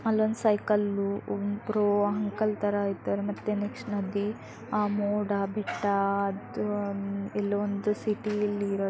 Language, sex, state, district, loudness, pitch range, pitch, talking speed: Kannada, female, Karnataka, Shimoga, -29 LUFS, 200-210 Hz, 205 Hz, 110 wpm